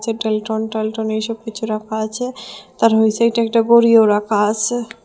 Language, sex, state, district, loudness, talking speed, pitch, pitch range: Bengali, female, Assam, Hailakandi, -17 LUFS, 105 wpm, 225 Hz, 220-230 Hz